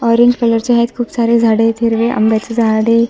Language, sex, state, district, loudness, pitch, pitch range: Marathi, female, Maharashtra, Washim, -13 LUFS, 230 Hz, 225-235 Hz